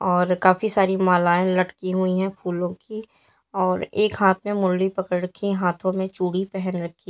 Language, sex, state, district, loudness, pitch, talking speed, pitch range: Hindi, female, Uttar Pradesh, Lalitpur, -22 LUFS, 185 Hz, 175 wpm, 180-195 Hz